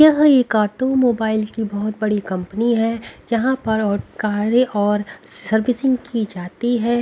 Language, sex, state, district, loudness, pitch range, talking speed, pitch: Hindi, female, Haryana, Rohtak, -19 LUFS, 210-245 Hz, 145 wpm, 225 Hz